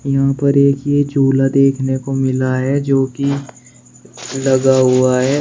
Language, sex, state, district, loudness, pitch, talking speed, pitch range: Hindi, male, Uttar Pradesh, Shamli, -15 LUFS, 135 Hz, 155 wpm, 130-140 Hz